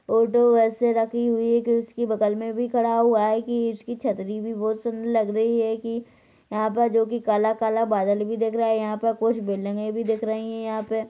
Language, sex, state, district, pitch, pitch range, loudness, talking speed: Hindi, female, Chhattisgarh, Rajnandgaon, 225 Hz, 220-230 Hz, -23 LUFS, 240 wpm